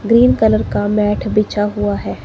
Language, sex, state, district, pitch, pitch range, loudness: Hindi, female, Himachal Pradesh, Shimla, 210 Hz, 165-220 Hz, -15 LUFS